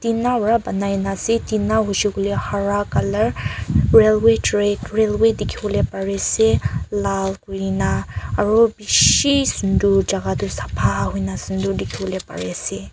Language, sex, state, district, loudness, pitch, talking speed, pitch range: Nagamese, female, Nagaland, Kohima, -19 LUFS, 200 Hz, 155 wpm, 185-220 Hz